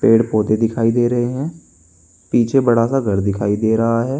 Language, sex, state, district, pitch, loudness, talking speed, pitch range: Hindi, male, Uttar Pradesh, Saharanpur, 115 Hz, -17 LUFS, 200 wpm, 105-120 Hz